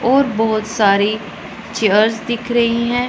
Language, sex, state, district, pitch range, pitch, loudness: Hindi, female, Punjab, Pathankot, 215-240 Hz, 225 Hz, -16 LUFS